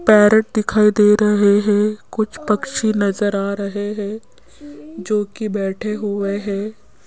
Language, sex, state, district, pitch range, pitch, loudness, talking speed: Hindi, female, Rajasthan, Jaipur, 200-215 Hz, 210 Hz, -18 LUFS, 135 wpm